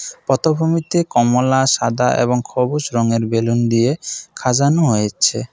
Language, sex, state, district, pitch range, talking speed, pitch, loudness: Bengali, male, Assam, Kamrup Metropolitan, 115-145 Hz, 110 wpm, 125 Hz, -17 LUFS